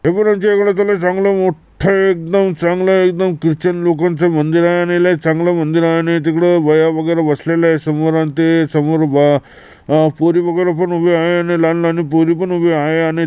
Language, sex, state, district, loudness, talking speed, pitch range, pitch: Marathi, male, Maharashtra, Chandrapur, -14 LUFS, 200 wpm, 160-180 Hz, 170 Hz